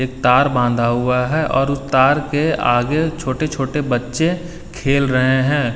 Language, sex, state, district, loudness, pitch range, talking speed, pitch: Hindi, male, Delhi, New Delhi, -17 LUFS, 125-155 Hz, 155 wpm, 135 Hz